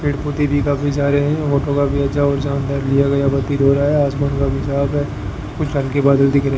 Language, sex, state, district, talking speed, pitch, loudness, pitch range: Hindi, male, Rajasthan, Bikaner, 220 wpm, 140 Hz, -17 LUFS, 140-145 Hz